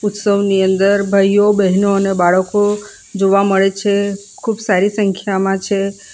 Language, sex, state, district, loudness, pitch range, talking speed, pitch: Gujarati, female, Gujarat, Valsad, -15 LUFS, 195-205 Hz, 135 wpm, 200 Hz